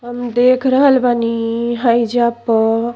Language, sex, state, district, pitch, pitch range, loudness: Bhojpuri, female, Uttar Pradesh, Gorakhpur, 240 Hz, 230-245 Hz, -15 LUFS